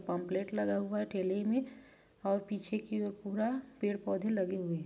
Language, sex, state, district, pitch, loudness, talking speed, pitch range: Hindi, female, Chhattisgarh, Raigarh, 205 Hz, -36 LUFS, 195 wpm, 190-220 Hz